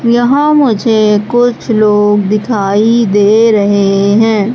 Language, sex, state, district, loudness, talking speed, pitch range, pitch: Hindi, female, Madhya Pradesh, Katni, -9 LUFS, 105 wpm, 205-235 Hz, 215 Hz